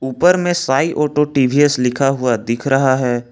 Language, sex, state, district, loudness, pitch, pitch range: Hindi, male, Jharkhand, Ranchi, -15 LUFS, 135 Hz, 125-150 Hz